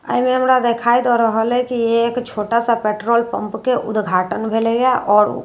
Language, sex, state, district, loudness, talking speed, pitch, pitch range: Maithili, female, Bihar, Katihar, -17 LUFS, 230 wpm, 235 Hz, 220-245 Hz